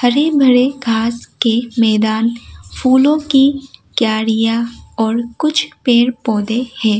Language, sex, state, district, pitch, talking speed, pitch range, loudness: Hindi, female, Assam, Kamrup Metropolitan, 235 Hz, 110 wpm, 225-265 Hz, -15 LUFS